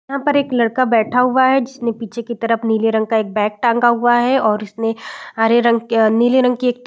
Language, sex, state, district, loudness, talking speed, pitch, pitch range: Hindi, female, Bihar, Saran, -16 LUFS, 260 wpm, 235 Hz, 225-250 Hz